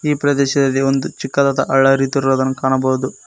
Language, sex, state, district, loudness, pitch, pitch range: Kannada, male, Karnataka, Koppal, -16 LUFS, 135 Hz, 130-140 Hz